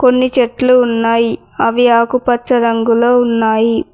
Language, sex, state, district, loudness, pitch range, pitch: Telugu, female, Telangana, Mahabubabad, -12 LUFS, 230-250 Hz, 240 Hz